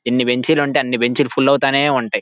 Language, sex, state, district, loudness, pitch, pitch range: Telugu, male, Andhra Pradesh, Guntur, -16 LUFS, 135 Hz, 125-145 Hz